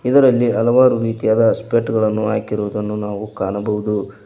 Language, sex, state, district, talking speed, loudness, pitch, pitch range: Kannada, male, Karnataka, Koppal, 115 wpm, -17 LUFS, 110 Hz, 105-120 Hz